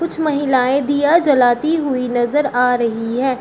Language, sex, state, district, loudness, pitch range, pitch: Hindi, female, Uttar Pradesh, Shamli, -16 LUFS, 245-295 Hz, 265 Hz